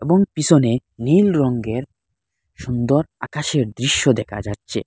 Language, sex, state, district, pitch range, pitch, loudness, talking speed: Bengali, male, Assam, Hailakandi, 110-150 Hz, 125 Hz, -19 LUFS, 110 wpm